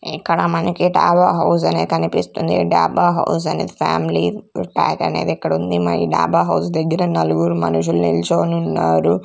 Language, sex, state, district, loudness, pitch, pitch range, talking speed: Telugu, female, Andhra Pradesh, Sri Satya Sai, -17 LUFS, 85 Hz, 80-85 Hz, 145 wpm